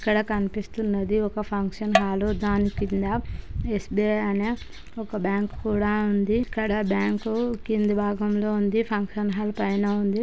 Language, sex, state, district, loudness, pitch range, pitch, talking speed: Telugu, female, Andhra Pradesh, Chittoor, -25 LUFS, 205-215 Hz, 210 Hz, 125 wpm